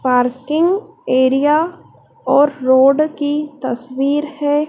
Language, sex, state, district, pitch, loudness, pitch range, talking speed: Hindi, female, Madhya Pradesh, Dhar, 290 Hz, -16 LUFS, 260-300 Hz, 90 wpm